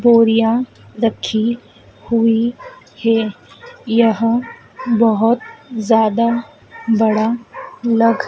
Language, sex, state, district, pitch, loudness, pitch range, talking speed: Hindi, female, Madhya Pradesh, Dhar, 230 Hz, -16 LUFS, 225-245 Hz, 65 wpm